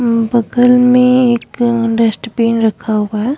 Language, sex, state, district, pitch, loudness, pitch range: Hindi, female, Goa, North and South Goa, 235 Hz, -12 LUFS, 225-245 Hz